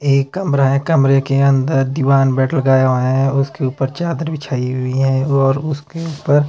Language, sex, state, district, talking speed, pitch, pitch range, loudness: Hindi, male, Himachal Pradesh, Shimla, 185 wpm, 135 Hz, 135-145 Hz, -16 LUFS